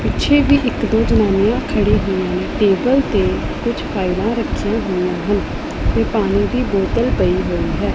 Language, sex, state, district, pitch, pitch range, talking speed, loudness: Punjabi, female, Punjab, Pathankot, 215 Hz, 195-250 Hz, 160 wpm, -17 LUFS